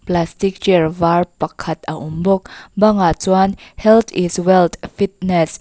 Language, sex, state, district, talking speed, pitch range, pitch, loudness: Mizo, female, Mizoram, Aizawl, 150 wpm, 170-195 Hz, 185 Hz, -16 LUFS